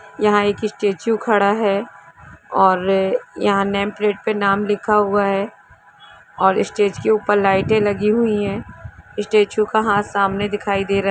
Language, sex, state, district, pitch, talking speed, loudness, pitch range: Hindi, female, Jharkhand, Jamtara, 205 Hz, 140 wpm, -18 LUFS, 200-210 Hz